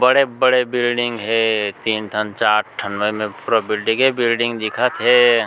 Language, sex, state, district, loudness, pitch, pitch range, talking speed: Chhattisgarhi, male, Chhattisgarh, Sukma, -18 LUFS, 115 Hz, 105-120 Hz, 145 wpm